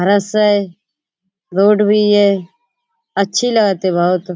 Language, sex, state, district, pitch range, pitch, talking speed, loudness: Hindi, female, Uttar Pradesh, Budaun, 190-210 Hz, 200 Hz, 110 wpm, -14 LUFS